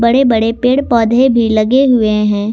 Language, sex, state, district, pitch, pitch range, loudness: Hindi, female, Jharkhand, Garhwa, 235 Hz, 220-250 Hz, -11 LUFS